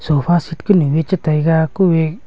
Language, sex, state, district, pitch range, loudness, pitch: Wancho, male, Arunachal Pradesh, Longding, 155-175 Hz, -15 LUFS, 165 Hz